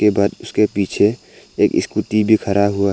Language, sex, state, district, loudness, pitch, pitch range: Hindi, male, Arunachal Pradesh, Papum Pare, -17 LUFS, 100 Hz, 100-105 Hz